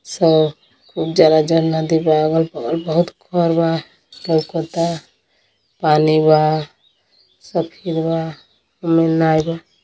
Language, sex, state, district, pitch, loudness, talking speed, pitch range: Hindi, female, Uttar Pradesh, Deoria, 160 Hz, -17 LUFS, 115 wpm, 155-165 Hz